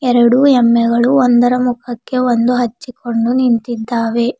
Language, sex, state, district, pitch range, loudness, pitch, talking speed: Kannada, female, Karnataka, Bidar, 235-250 Hz, -13 LUFS, 245 Hz, 95 wpm